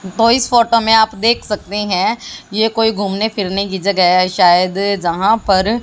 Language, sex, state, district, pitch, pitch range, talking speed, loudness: Hindi, female, Haryana, Jhajjar, 205 Hz, 190-225 Hz, 185 wpm, -14 LUFS